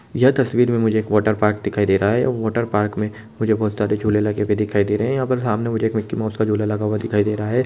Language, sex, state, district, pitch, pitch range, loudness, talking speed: Hindi, male, Bihar, Jamui, 110 Hz, 105-115 Hz, -20 LUFS, 275 wpm